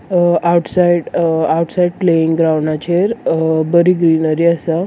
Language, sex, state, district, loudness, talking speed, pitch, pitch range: Konkani, female, Goa, North and South Goa, -14 LUFS, 125 wpm, 170 Hz, 160-175 Hz